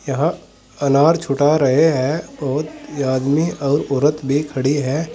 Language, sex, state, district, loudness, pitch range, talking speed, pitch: Hindi, male, Uttar Pradesh, Saharanpur, -18 LUFS, 135-155 Hz, 150 wpm, 140 Hz